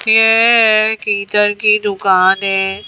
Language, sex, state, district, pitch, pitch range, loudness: Hindi, female, Madhya Pradesh, Bhopal, 210 Hz, 195-220 Hz, -12 LUFS